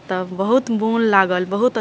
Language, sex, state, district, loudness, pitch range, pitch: Maithili, female, Bihar, Purnia, -18 LUFS, 185-230 Hz, 200 Hz